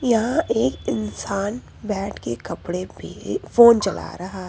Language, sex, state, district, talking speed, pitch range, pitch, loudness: Hindi, male, Uttar Pradesh, Lucknow, 145 wpm, 180-230 Hz, 200 Hz, -21 LUFS